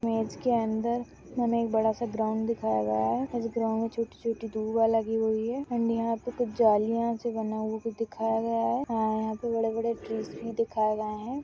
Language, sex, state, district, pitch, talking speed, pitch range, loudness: Hindi, female, Rajasthan, Churu, 225 Hz, 215 wpm, 220-230 Hz, -29 LUFS